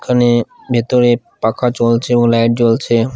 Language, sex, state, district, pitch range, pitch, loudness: Bengali, male, Odisha, Khordha, 115-120 Hz, 120 Hz, -14 LUFS